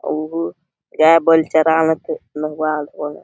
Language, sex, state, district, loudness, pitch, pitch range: Awadhi, male, Chhattisgarh, Balrampur, -17 LUFS, 155 Hz, 150-160 Hz